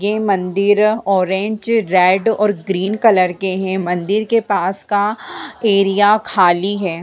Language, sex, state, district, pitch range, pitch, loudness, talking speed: Hindi, female, Bihar, Sitamarhi, 190-215 Hz, 200 Hz, -15 LUFS, 135 wpm